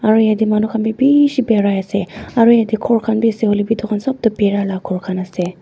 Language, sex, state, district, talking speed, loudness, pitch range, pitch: Nagamese, female, Nagaland, Dimapur, 245 wpm, -16 LUFS, 200-225 Hz, 220 Hz